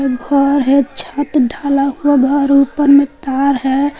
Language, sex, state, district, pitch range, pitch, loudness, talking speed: Hindi, female, Jharkhand, Palamu, 270-285 Hz, 280 Hz, -13 LUFS, 150 wpm